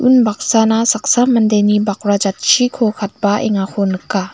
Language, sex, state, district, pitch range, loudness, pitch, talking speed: Garo, female, Meghalaya, West Garo Hills, 205-240 Hz, -14 LUFS, 215 Hz, 95 wpm